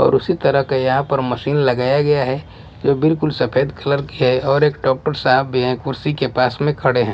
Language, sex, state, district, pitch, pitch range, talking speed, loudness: Hindi, male, Bihar, West Champaran, 135 Hz, 130-145 Hz, 235 wpm, -17 LUFS